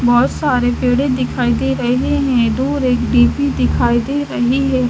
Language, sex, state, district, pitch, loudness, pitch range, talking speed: Hindi, female, Haryana, Charkhi Dadri, 250 Hz, -15 LUFS, 240-265 Hz, 160 wpm